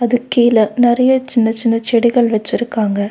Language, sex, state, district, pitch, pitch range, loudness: Tamil, female, Tamil Nadu, Nilgiris, 235 Hz, 225-245 Hz, -14 LUFS